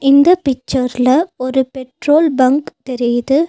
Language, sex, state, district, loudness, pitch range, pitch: Tamil, female, Tamil Nadu, Nilgiris, -14 LUFS, 255-290 Hz, 265 Hz